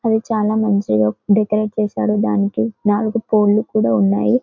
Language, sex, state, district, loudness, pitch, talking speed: Telugu, female, Telangana, Karimnagar, -17 LUFS, 210 Hz, 150 wpm